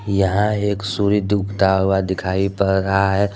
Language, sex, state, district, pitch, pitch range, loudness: Hindi, male, Jharkhand, Deoghar, 100 Hz, 95-100 Hz, -18 LUFS